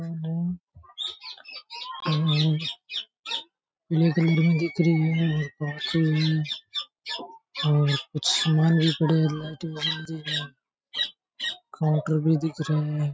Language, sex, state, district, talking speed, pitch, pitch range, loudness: Rajasthani, male, Rajasthan, Churu, 80 wpm, 160 Hz, 155-165 Hz, -25 LUFS